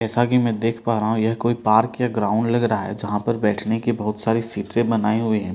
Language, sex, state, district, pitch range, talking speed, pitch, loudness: Hindi, male, Delhi, New Delhi, 110-115 Hz, 270 wpm, 115 Hz, -21 LUFS